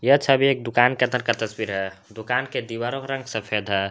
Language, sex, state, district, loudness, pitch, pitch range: Hindi, male, Jharkhand, Garhwa, -23 LUFS, 115 Hz, 110-130 Hz